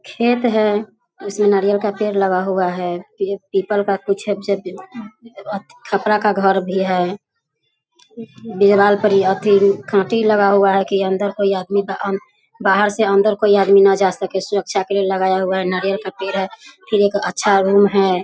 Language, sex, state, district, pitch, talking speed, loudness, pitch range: Hindi, female, Bihar, Sitamarhi, 200 Hz, 165 wpm, -17 LUFS, 195-210 Hz